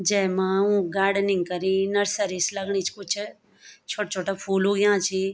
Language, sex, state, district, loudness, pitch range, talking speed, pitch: Garhwali, female, Uttarakhand, Tehri Garhwal, -24 LUFS, 190-205 Hz, 155 wpm, 195 Hz